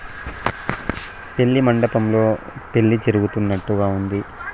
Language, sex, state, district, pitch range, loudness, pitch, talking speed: Telugu, male, Andhra Pradesh, Sri Satya Sai, 100-115 Hz, -20 LUFS, 110 Hz, 65 wpm